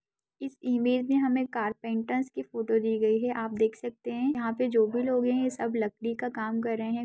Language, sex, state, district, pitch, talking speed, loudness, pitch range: Hindi, female, Bihar, Saharsa, 235 Hz, 230 wpm, -29 LUFS, 225-250 Hz